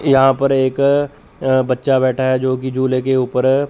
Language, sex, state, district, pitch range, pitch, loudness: Hindi, male, Chandigarh, Chandigarh, 130-135 Hz, 130 Hz, -16 LUFS